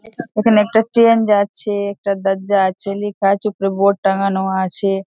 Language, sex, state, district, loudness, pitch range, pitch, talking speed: Bengali, female, West Bengal, Dakshin Dinajpur, -16 LUFS, 195-210 Hz, 200 Hz, 155 wpm